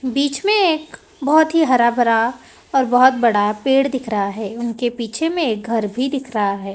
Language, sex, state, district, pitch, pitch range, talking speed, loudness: Hindi, female, Maharashtra, Gondia, 250 Hz, 225-280 Hz, 195 wpm, -18 LUFS